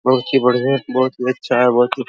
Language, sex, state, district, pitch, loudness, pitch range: Hindi, male, Bihar, Araria, 130 Hz, -16 LUFS, 125-130 Hz